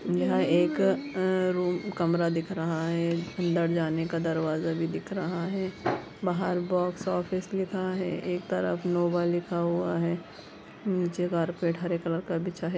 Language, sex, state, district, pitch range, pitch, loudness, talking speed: Hindi, female, Chhattisgarh, Bastar, 170-185 Hz, 175 Hz, -29 LUFS, 155 wpm